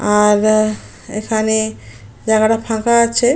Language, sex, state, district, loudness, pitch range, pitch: Bengali, female, West Bengal, Jalpaiguri, -15 LUFS, 210-225 Hz, 220 Hz